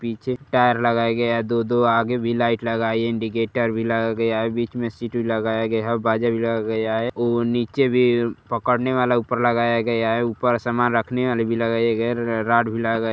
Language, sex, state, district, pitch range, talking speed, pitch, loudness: Hindi, male, Uttar Pradesh, Gorakhpur, 115-120 Hz, 230 wpm, 115 Hz, -21 LUFS